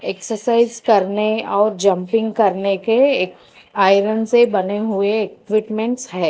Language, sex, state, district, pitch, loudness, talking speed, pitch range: Hindi, female, Telangana, Hyderabad, 215 Hz, -17 LUFS, 115 wpm, 195-225 Hz